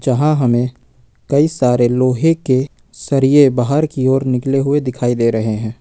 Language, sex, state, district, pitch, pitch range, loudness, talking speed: Hindi, male, Jharkhand, Ranchi, 130 Hz, 125-140 Hz, -15 LUFS, 165 wpm